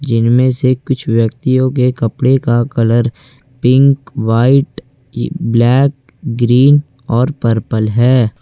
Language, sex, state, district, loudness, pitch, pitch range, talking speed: Hindi, male, Jharkhand, Ranchi, -13 LUFS, 125 Hz, 115-135 Hz, 105 wpm